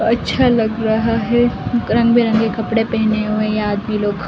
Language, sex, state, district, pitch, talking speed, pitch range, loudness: Hindi, female, Delhi, New Delhi, 225 Hz, 180 wpm, 215-230 Hz, -16 LUFS